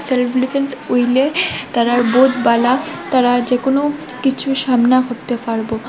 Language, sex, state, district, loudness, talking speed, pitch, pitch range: Bengali, female, Assam, Hailakandi, -16 LUFS, 120 wpm, 255 Hz, 245-270 Hz